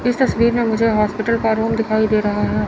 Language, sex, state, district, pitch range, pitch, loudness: Hindi, male, Chandigarh, Chandigarh, 215-230 Hz, 220 Hz, -17 LUFS